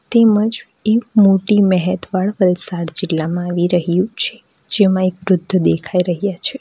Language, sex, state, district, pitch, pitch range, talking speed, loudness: Gujarati, female, Gujarat, Valsad, 185 Hz, 175-205 Hz, 135 wpm, -16 LUFS